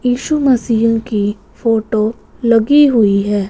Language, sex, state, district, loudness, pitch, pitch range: Hindi, female, Punjab, Fazilka, -14 LUFS, 230 Hz, 215-245 Hz